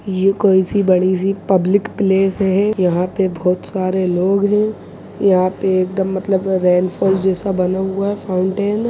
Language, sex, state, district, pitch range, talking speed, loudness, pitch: Hindi, male, Chhattisgarh, Rajnandgaon, 185-195 Hz, 170 wpm, -16 LUFS, 190 Hz